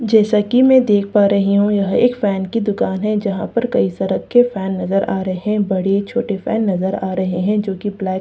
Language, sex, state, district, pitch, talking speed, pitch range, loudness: Hindi, female, Bihar, Katihar, 200 Hz, 240 wpm, 190-215 Hz, -17 LUFS